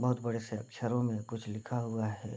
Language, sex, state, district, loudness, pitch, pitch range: Hindi, male, Bihar, Bhagalpur, -36 LUFS, 115 Hz, 110-120 Hz